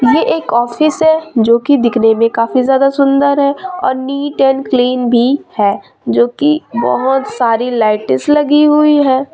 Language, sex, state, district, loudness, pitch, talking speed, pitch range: Hindi, female, Chhattisgarh, Raipur, -12 LUFS, 265 Hz, 165 wpm, 235-290 Hz